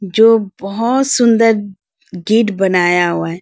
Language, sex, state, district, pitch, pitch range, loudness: Hindi, female, Arunachal Pradesh, Lower Dibang Valley, 205 Hz, 180-225 Hz, -13 LUFS